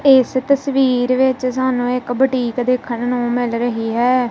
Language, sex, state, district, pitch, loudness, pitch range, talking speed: Punjabi, female, Punjab, Kapurthala, 250 Hz, -17 LUFS, 245-260 Hz, 155 wpm